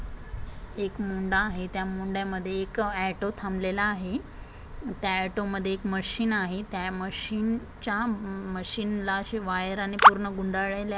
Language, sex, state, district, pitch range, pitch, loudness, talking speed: Marathi, female, Maharashtra, Aurangabad, 190-205 Hz, 195 Hz, -27 LUFS, 130 wpm